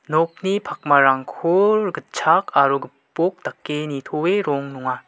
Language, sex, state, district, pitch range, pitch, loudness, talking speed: Garo, male, Meghalaya, West Garo Hills, 140-180 Hz, 150 Hz, -20 LUFS, 105 wpm